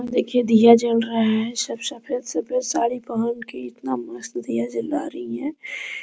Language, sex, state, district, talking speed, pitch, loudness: Hindi, female, Bihar, Araria, 180 wpm, 235 Hz, -22 LUFS